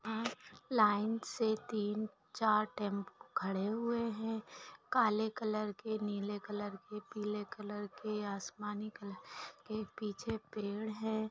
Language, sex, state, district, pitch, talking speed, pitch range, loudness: Hindi, female, Maharashtra, Solapur, 215 Hz, 125 wpm, 205-220 Hz, -38 LUFS